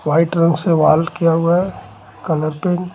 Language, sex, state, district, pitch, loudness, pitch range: Hindi, male, Jharkhand, Ranchi, 165 Hz, -16 LUFS, 155-175 Hz